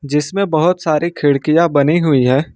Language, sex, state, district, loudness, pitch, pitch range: Hindi, male, Jharkhand, Ranchi, -14 LUFS, 155 Hz, 145-170 Hz